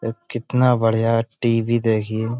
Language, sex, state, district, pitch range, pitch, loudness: Hindi, male, Uttar Pradesh, Budaun, 115-120 Hz, 115 Hz, -20 LUFS